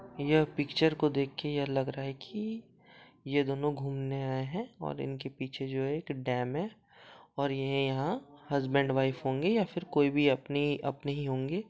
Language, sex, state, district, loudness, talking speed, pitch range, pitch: Hindi, male, Jharkhand, Sahebganj, -32 LUFS, 190 wpm, 135-155 Hz, 140 Hz